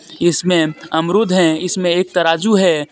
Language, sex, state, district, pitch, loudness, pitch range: Hindi, male, Jharkhand, Deoghar, 175 Hz, -15 LUFS, 160-185 Hz